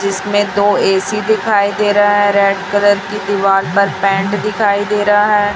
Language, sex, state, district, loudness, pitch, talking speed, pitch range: Hindi, female, Chhattisgarh, Raipur, -13 LUFS, 205 Hz, 185 wpm, 195-205 Hz